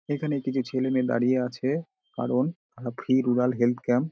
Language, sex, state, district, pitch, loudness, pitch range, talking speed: Bengali, male, West Bengal, Dakshin Dinajpur, 130 Hz, -26 LUFS, 125-145 Hz, 175 wpm